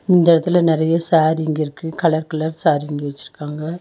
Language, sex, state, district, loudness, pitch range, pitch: Tamil, female, Tamil Nadu, Nilgiris, -18 LUFS, 155-165 Hz, 160 Hz